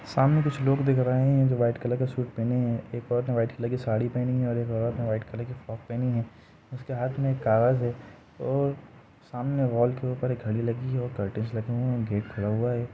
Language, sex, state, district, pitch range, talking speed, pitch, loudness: Hindi, male, Uttar Pradesh, Jalaun, 115-130 Hz, 255 wpm, 120 Hz, -27 LUFS